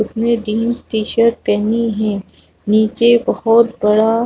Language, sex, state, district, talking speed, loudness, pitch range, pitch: Hindi, female, Chhattisgarh, Rajnandgaon, 115 wpm, -15 LUFS, 215-235 Hz, 225 Hz